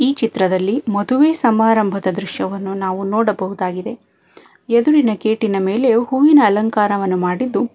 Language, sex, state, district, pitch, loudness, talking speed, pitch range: Kannada, female, Karnataka, Bangalore, 215 Hz, -16 LUFS, 100 wpm, 195-240 Hz